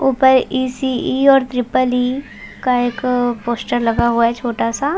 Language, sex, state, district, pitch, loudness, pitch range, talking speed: Hindi, female, Chhattisgarh, Balrampur, 250 Hz, -17 LUFS, 240-260 Hz, 180 wpm